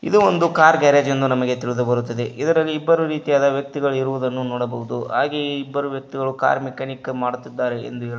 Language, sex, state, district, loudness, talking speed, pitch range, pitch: Kannada, male, Karnataka, Koppal, -20 LUFS, 170 wpm, 125-145 Hz, 135 Hz